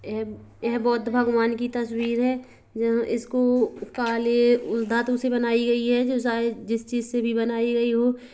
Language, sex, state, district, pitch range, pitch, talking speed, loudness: Hindi, female, Chhattisgarh, Kabirdham, 230-245 Hz, 235 Hz, 180 wpm, -24 LUFS